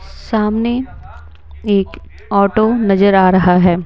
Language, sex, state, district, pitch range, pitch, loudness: Hindi, female, Bihar, Patna, 180-215 Hz, 195 Hz, -14 LUFS